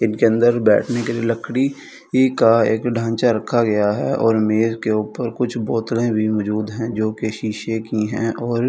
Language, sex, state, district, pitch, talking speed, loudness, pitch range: Hindi, male, Delhi, New Delhi, 115 Hz, 185 wpm, -19 LUFS, 110-120 Hz